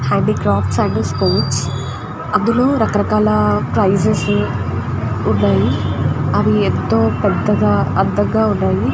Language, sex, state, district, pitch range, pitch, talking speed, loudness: Telugu, female, Andhra Pradesh, Guntur, 105-115 Hz, 105 Hz, 80 wpm, -16 LUFS